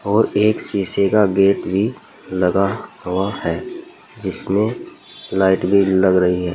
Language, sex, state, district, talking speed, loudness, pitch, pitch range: Hindi, male, Uttar Pradesh, Saharanpur, 135 wpm, -17 LUFS, 100 Hz, 95-105 Hz